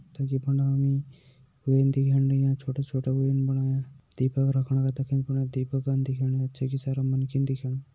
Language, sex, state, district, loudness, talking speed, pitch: Garhwali, male, Uttarakhand, Uttarkashi, -27 LUFS, 165 wpm, 135 Hz